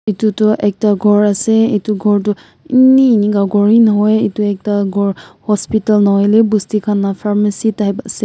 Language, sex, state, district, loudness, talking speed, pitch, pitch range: Nagamese, male, Nagaland, Kohima, -13 LUFS, 175 wpm, 210 Hz, 205-220 Hz